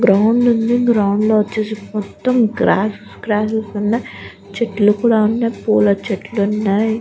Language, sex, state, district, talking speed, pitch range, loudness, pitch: Telugu, female, Andhra Pradesh, Guntur, 135 wpm, 205-230 Hz, -16 LUFS, 215 Hz